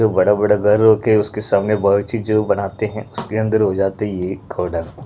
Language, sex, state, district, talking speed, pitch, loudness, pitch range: Hindi, male, Punjab, Pathankot, 235 wpm, 105 Hz, -17 LUFS, 100-110 Hz